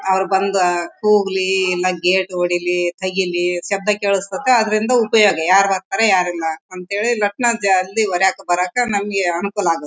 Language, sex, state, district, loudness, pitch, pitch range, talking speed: Kannada, female, Karnataka, Bellary, -17 LUFS, 190 Hz, 180-205 Hz, 135 wpm